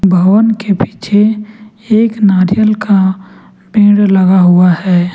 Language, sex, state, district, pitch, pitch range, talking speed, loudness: Hindi, male, Jharkhand, Ranchi, 200 Hz, 190-215 Hz, 115 wpm, -10 LUFS